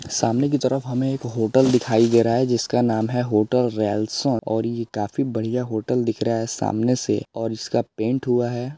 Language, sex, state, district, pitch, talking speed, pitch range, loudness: Hindi, male, Bihar, Gopalganj, 115 Hz, 220 wpm, 110-125 Hz, -22 LUFS